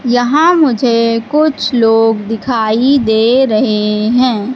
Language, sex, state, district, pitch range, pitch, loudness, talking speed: Hindi, female, Madhya Pradesh, Katni, 225-260 Hz, 235 Hz, -11 LUFS, 105 wpm